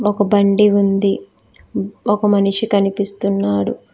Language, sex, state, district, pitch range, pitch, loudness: Telugu, female, Telangana, Hyderabad, 195-205 Hz, 200 Hz, -16 LUFS